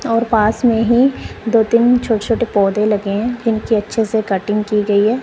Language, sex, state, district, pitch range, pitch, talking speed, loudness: Hindi, female, Punjab, Kapurthala, 210-235 Hz, 225 Hz, 205 wpm, -15 LUFS